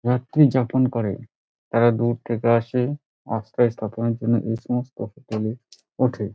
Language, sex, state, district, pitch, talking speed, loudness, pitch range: Bengali, male, West Bengal, Dakshin Dinajpur, 120 Hz, 140 wpm, -22 LUFS, 115-125 Hz